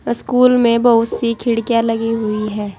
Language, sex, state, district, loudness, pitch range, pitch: Hindi, female, Uttar Pradesh, Saharanpur, -15 LUFS, 225-235 Hz, 230 Hz